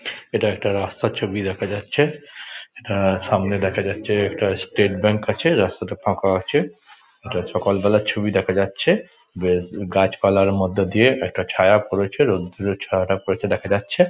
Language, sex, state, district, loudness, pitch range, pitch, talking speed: Bengali, male, West Bengal, Dakshin Dinajpur, -20 LUFS, 95-105 Hz, 100 Hz, 155 wpm